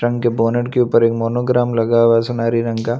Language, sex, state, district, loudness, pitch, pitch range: Hindi, male, Delhi, New Delhi, -16 LUFS, 115 Hz, 115-120 Hz